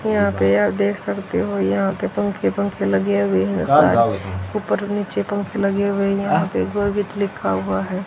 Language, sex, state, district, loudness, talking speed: Hindi, female, Haryana, Jhajjar, -20 LUFS, 180 wpm